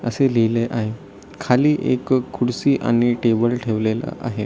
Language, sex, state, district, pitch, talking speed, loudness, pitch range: Marathi, male, Maharashtra, Solapur, 120 Hz, 135 wpm, -19 LUFS, 115-125 Hz